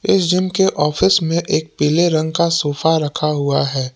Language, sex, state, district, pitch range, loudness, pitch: Hindi, male, Jharkhand, Palamu, 150-175 Hz, -16 LUFS, 160 Hz